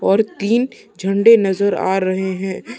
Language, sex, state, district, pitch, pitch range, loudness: Hindi, male, Chhattisgarh, Sukma, 200 Hz, 190-220 Hz, -17 LUFS